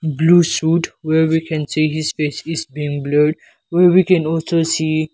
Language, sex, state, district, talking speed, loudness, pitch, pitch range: English, male, Nagaland, Kohima, 175 wpm, -16 LUFS, 160 Hz, 155-165 Hz